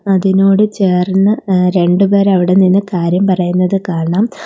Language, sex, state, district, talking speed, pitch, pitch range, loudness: Malayalam, female, Kerala, Kollam, 105 wpm, 190 Hz, 180-195 Hz, -12 LUFS